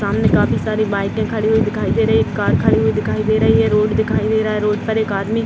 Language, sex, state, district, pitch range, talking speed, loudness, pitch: Hindi, female, Bihar, Sitamarhi, 155-220 Hz, 305 wpm, -16 LUFS, 215 Hz